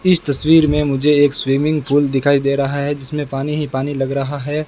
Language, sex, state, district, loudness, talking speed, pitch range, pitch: Hindi, male, Rajasthan, Bikaner, -16 LUFS, 230 wpm, 140-150 Hz, 145 Hz